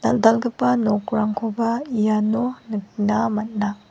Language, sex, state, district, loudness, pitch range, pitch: Garo, female, Meghalaya, West Garo Hills, -21 LUFS, 210-235 Hz, 220 Hz